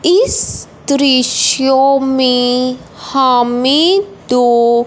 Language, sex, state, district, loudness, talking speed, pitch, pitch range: Hindi, male, Punjab, Fazilka, -12 LUFS, 60 wpm, 265 Hz, 245-280 Hz